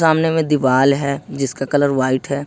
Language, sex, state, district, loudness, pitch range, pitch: Hindi, male, Jharkhand, Ranchi, -17 LUFS, 135-150 Hz, 140 Hz